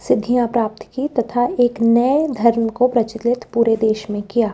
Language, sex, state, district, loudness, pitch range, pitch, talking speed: Hindi, female, Rajasthan, Jaipur, -18 LUFS, 225-245 Hz, 235 Hz, 170 wpm